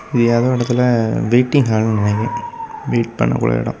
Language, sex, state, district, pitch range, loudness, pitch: Tamil, male, Tamil Nadu, Kanyakumari, 115-140 Hz, -16 LUFS, 120 Hz